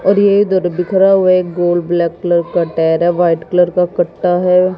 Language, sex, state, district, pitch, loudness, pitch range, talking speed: Hindi, female, Haryana, Jhajjar, 180 Hz, -13 LUFS, 175-185 Hz, 215 wpm